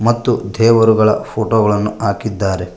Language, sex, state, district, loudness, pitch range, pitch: Kannada, male, Karnataka, Koppal, -14 LUFS, 100-115 Hz, 110 Hz